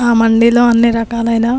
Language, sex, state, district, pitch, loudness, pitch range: Telugu, female, Telangana, Nalgonda, 235 Hz, -11 LUFS, 230-235 Hz